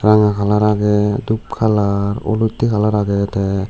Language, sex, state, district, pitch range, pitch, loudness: Chakma, male, Tripura, West Tripura, 100-105 Hz, 105 Hz, -16 LUFS